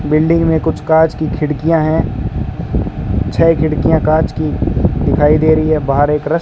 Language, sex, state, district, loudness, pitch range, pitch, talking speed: Hindi, male, Rajasthan, Bikaner, -14 LUFS, 150-160 Hz, 155 Hz, 175 wpm